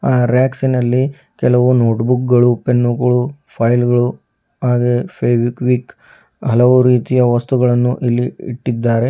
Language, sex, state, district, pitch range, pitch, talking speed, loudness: Kannada, female, Karnataka, Bidar, 120-125 Hz, 125 Hz, 90 wpm, -15 LUFS